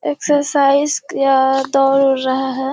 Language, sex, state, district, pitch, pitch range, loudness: Hindi, female, Bihar, Kishanganj, 270 Hz, 265-280 Hz, -15 LUFS